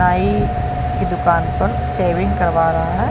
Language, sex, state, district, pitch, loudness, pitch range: Hindi, female, Chhattisgarh, Balrampur, 105 Hz, -17 LUFS, 80-115 Hz